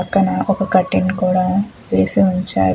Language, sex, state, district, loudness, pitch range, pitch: Telugu, female, Andhra Pradesh, Chittoor, -17 LUFS, 185-195 Hz, 185 Hz